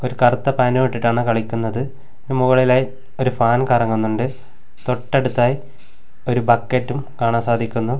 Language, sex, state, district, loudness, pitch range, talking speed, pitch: Malayalam, male, Kerala, Kasaragod, -19 LUFS, 115-130 Hz, 105 wpm, 125 Hz